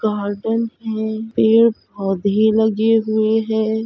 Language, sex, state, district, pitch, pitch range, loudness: Hindi, female, Bihar, Kishanganj, 220 Hz, 215-225 Hz, -18 LUFS